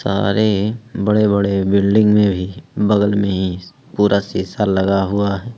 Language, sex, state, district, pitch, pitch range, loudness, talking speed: Hindi, male, Jharkhand, Ranchi, 100 Hz, 95-105 Hz, -16 LUFS, 150 wpm